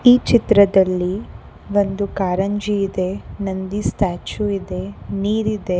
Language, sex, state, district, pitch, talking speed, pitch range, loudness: Kannada, female, Karnataka, Koppal, 200 Hz, 95 wpm, 185-205 Hz, -19 LUFS